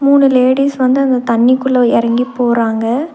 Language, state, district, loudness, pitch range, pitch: Tamil, Tamil Nadu, Nilgiris, -12 LUFS, 240-270 Hz, 255 Hz